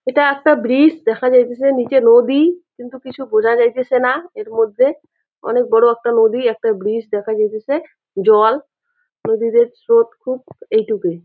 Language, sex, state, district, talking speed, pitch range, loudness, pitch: Bengali, female, West Bengal, Jalpaiguri, 145 wpm, 235-335 Hz, -15 LUFS, 255 Hz